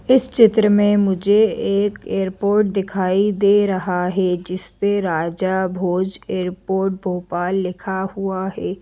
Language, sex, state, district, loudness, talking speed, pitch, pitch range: Hindi, female, Madhya Pradesh, Bhopal, -19 LUFS, 130 wpm, 190 Hz, 185-205 Hz